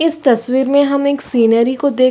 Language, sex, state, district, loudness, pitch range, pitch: Hindi, female, Chhattisgarh, Sarguja, -13 LUFS, 250-280 Hz, 265 Hz